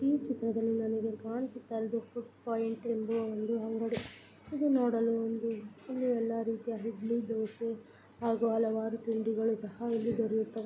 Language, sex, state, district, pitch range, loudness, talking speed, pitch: Kannada, female, Karnataka, Bellary, 225-235 Hz, -34 LUFS, 120 wpm, 225 Hz